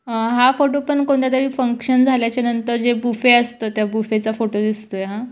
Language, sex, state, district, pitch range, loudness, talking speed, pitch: Marathi, female, Maharashtra, Chandrapur, 220-255 Hz, -18 LUFS, 205 wpm, 240 Hz